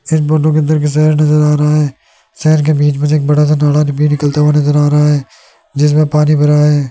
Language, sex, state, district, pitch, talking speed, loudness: Hindi, male, Rajasthan, Jaipur, 150 Hz, 70 wpm, -11 LUFS